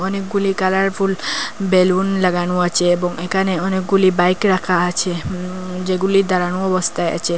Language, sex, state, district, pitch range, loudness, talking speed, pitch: Bengali, female, Assam, Hailakandi, 180-190 Hz, -17 LUFS, 130 wpm, 185 Hz